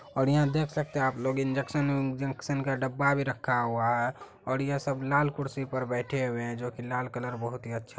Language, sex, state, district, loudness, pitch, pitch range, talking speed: Hindi, male, Bihar, Araria, -30 LUFS, 135 Hz, 125-140 Hz, 235 wpm